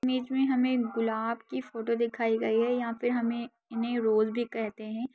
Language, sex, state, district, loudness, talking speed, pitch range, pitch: Hindi, female, Bihar, Saharsa, -30 LUFS, 200 wpm, 225-250 Hz, 235 Hz